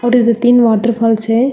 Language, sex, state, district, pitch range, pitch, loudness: Hindi, female, Telangana, Hyderabad, 225-245 Hz, 235 Hz, -12 LUFS